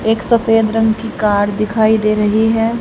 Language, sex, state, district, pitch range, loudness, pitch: Hindi, female, Haryana, Rohtak, 215-225 Hz, -14 LUFS, 220 Hz